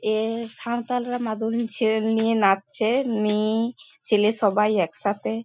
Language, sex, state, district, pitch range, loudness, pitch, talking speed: Bengali, female, West Bengal, Paschim Medinipur, 210-230 Hz, -23 LUFS, 220 Hz, 110 wpm